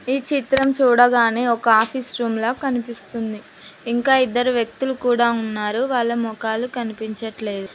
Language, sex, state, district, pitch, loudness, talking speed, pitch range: Telugu, female, Telangana, Mahabubabad, 235 Hz, -20 LUFS, 115 wpm, 225-255 Hz